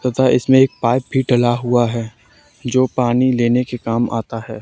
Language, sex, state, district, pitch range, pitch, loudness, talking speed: Hindi, male, Haryana, Charkhi Dadri, 115-130 Hz, 120 Hz, -16 LUFS, 195 wpm